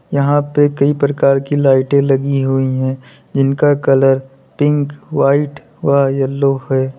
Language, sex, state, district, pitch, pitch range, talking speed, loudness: Hindi, male, Uttar Pradesh, Lalitpur, 140 Hz, 135-145 Hz, 135 wpm, -14 LUFS